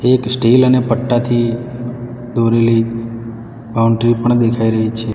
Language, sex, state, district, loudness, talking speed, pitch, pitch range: Gujarati, male, Gujarat, Valsad, -15 LUFS, 115 wpm, 115 Hz, 115-120 Hz